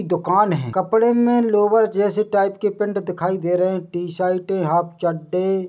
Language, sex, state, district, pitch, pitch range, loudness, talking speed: Hindi, male, Chhattisgarh, Bilaspur, 190 Hz, 180-210 Hz, -19 LUFS, 180 wpm